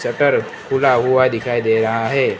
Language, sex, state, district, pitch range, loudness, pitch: Hindi, male, Gujarat, Gandhinagar, 115-130 Hz, -17 LUFS, 120 Hz